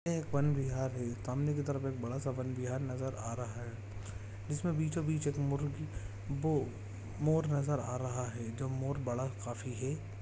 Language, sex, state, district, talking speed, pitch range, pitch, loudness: Hindi, male, Jharkhand, Jamtara, 190 wpm, 115-145 Hz, 130 Hz, -37 LUFS